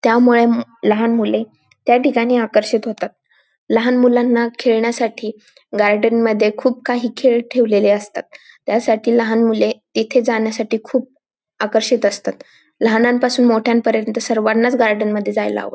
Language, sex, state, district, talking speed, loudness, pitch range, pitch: Marathi, female, Maharashtra, Dhule, 135 wpm, -16 LUFS, 220-245 Hz, 230 Hz